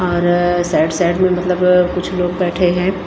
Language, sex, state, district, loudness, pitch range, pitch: Hindi, female, Himachal Pradesh, Shimla, -15 LUFS, 175-180 Hz, 180 Hz